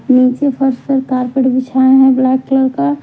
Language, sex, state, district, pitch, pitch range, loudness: Hindi, female, Bihar, Patna, 260 Hz, 255-265 Hz, -12 LUFS